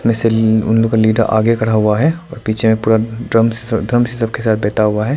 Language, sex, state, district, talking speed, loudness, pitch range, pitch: Hindi, male, Arunachal Pradesh, Lower Dibang Valley, 255 wpm, -14 LUFS, 110-115 Hz, 115 Hz